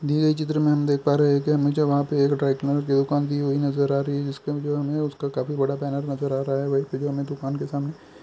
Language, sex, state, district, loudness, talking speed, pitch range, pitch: Hindi, male, Chhattisgarh, Bilaspur, -24 LUFS, 275 wpm, 140-145 Hz, 140 Hz